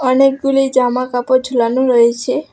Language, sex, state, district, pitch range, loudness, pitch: Bengali, female, West Bengal, Alipurduar, 245-270 Hz, -14 LUFS, 255 Hz